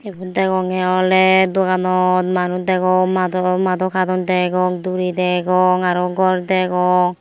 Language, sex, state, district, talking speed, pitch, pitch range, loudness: Chakma, female, Tripura, Unakoti, 125 wpm, 185 Hz, 180-185 Hz, -17 LUFS